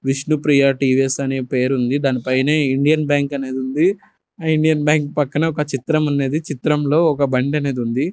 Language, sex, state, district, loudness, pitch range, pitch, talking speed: Telugu, male, Andhra Pradesh, Sri Satya Sai, -18 LUFS, 135-155 Hz, 140 Hz, 170 wpm